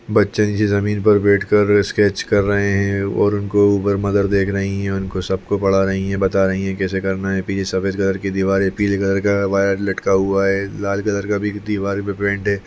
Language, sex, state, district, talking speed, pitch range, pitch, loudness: Hindi, male, Chhattisgarh, Bastar, 225 wpm, 95-100 Hz, 100 Hz, -18 LUFS